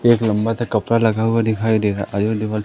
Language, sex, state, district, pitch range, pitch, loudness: Hindi, male, Madhya Pradesh, Umaria, 105-115 Hz, 110 Hz, -18 LUFS